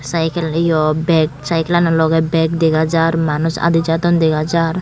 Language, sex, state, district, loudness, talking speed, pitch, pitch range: Chakma, female, Tripura, Dhalai, -15 LUFS, 160 wpm, 165 Hz, 160-165 Hz